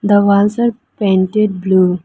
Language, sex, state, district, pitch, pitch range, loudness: English, female, Arunachal Pradesh, Lower Dibang Valley, 200 Hz, 185-210 Hz, -14 LUFS